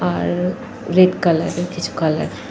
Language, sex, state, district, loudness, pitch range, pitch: Bengali, female, Jharkhand, Jamtara, -18 LUFS, 160-180 Hz, 175 Hz